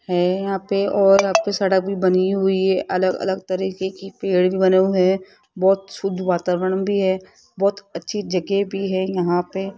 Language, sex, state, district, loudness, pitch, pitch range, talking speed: Hindi, female, Rajasthan, Jaipur, -20 LUFS, 190 Hz, 185-195 Hz, 195 wpm